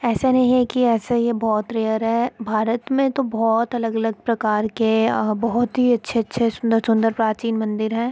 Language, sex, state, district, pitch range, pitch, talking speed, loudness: Hindi, female, Uttar Pradesh, Etah, 220-240 Hz, 230 Hz, 170 wpm, -20 LUFS